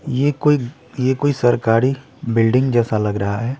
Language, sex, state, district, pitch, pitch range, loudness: Hindi, male, Bihar, West Champaran, 125 Hz, 115-135 Hz, -18 LUFS